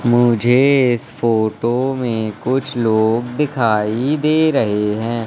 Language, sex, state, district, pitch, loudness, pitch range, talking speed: Hindi, male, Madhya Pradesh, Katni, 120 Hz, -16 LUFS, 110-130 Hz, 115 wpm